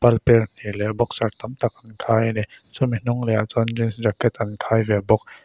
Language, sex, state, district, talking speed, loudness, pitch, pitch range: Mizo, male, Mizoram, Aizawl, 210 wpm, -22 LUFS, 115 Hz, 110-120 Hz